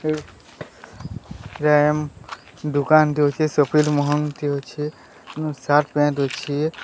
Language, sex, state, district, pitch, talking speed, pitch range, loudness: Odia, male, Odisha, Sambalpur, 150 Hz, 115 wpm, 145-150 Hz, -21 LUFS